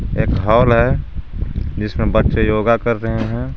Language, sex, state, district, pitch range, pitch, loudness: Hindi, male, Jharkhand, Garhwa, 95-115 Hz, 110 Hz, -17 LUFS